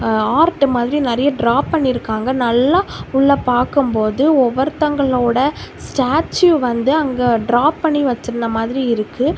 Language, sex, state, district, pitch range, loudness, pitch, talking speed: Tamil, female, Tamil Nadu, Kanyakumari, 240-290 Hz, -16 LUFS, 260 Hz, 120 wpm